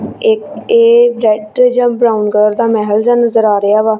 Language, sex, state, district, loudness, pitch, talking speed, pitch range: Punjabi, female, Punjab, Kapurthala, -11 LUFS, 230 Hz, 195 wpm, 210-250 Hz